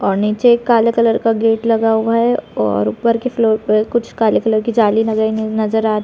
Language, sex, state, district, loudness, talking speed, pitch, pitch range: Hindi, female, Chhattisgarh, Bilaspur, -15 LUFS, 220 wpm, 225 Hz, 220-230 Hz